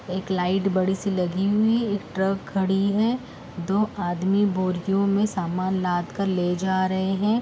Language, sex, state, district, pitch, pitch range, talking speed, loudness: Hindi, female, Uttar Pradesh, Muzaffarnagar, 190 Hz, 185-200 Hz, 160 wpm, -24 LUFS